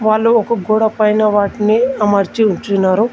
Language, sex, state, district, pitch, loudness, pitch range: Telugu, male, Telangana, Komaram Bheem, 215 Hz, -14 LUFS, 205-220 Hz